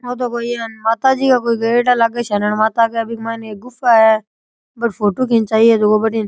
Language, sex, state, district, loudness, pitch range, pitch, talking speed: Rajasthani, male, Rajasthan, Churu, -15 LUFS, 220-240 Hz, 230 Hz, 180 wpm